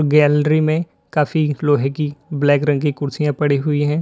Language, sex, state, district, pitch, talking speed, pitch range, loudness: Hindi, male, Uttar Pradesh, Lalitpur, 150 Hz, 180 wpm, 145-150 Hz, -18 LUFS